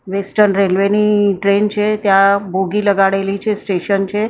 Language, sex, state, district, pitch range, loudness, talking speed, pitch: Gujarati, female, Maharashtra, Mumbai Suburban, 195-210 Hz, -15 LUFS, 155 wpm, 200 Hz